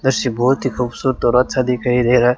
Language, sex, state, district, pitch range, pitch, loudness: Hindi, male, Rajasthan, Bikaner, 125-130 Hz, 125 Hz, -17 LUFS